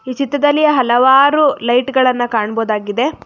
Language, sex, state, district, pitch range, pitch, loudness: Kannada, female, Karnataka, Bangalore, 240-285 Hz, 255 Hz, -13 LUFS